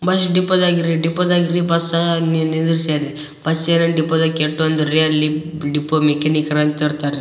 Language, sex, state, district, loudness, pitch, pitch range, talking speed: Kannada, male, Karnataka, Raichur, -17 LUFS, 160 Hz, 150-170 Hz, 185 wpm